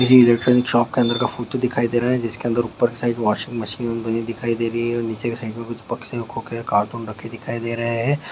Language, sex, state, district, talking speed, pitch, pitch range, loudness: Hindi, male, Bihar, Sitamarhi, 260 wpm, 115 Hz, 115-120 Hz, -21 LUFS